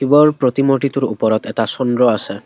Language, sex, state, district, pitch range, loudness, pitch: Assamese, male, Assam, Kamrup Metropolitan, 120-135 Hz, -15 LUFS, 135 Hz